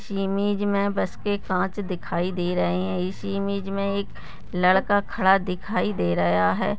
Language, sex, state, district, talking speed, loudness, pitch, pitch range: Hindi, female, Goa, North and South Goa, 185 wpm, -24 LUFS, 195 Hz, 180-200 Hz